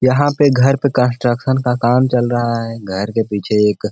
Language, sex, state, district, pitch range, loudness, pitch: Hindi, male, Bihar, Gaya, 115-130 Hz, -15 LUFS, 120 Hz